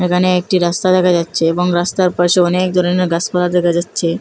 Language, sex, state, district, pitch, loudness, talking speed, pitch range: Bengali, female, Assam, Hailakandi, 180 Hz, -14 LUFS, 185 wpm, 175-180 Hz